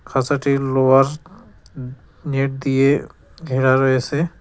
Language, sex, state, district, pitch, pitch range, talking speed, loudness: Bengali, male, West Bengal, Cooch Behar, 135 Hz, 130-145 Hz, 80 wpm, -18 LUFS